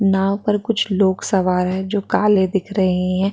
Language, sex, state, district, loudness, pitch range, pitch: Hindi, female, Chhattisgarh, Sukma, -18 LUFS, 190-205 Hz, 195 Hz